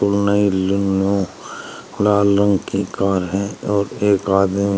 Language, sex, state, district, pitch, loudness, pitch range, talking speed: Hindi, male, Uttar Pradesh, Shamli, 100 Hz, -18 LUFS, 95-100 Hz, 140 wpm